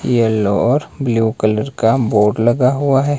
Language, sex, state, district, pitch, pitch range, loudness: Hindi, male, Himachal Pradesh, Shimla, 115 Hz, 110-135 Hz, -15 LUFS